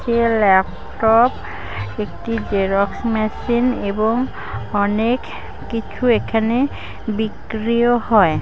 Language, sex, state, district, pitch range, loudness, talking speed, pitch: Bengali, female, West Bengal, Malda, 205-235 Hz, -19 LUFS, 70 wpm, 220 Hz